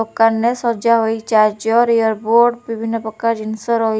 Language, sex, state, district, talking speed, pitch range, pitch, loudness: Odia, female, Odisha, Khordha, 165 wpm, 220-230 Hz, 225 Hz, -16 LUFS